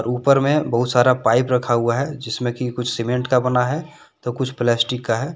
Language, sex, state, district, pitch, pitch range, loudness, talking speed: Hindi, male, Jharkhand, Deoghar, 125 Hz, 120-130 Hz, -19 LUFS, 225 wpm